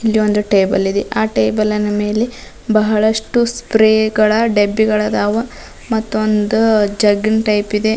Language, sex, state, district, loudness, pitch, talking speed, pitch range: Kannada, female, Karnataka, Dharwad, -15 LUFS, 215 Hz, 130 wpm, 210-220 Hz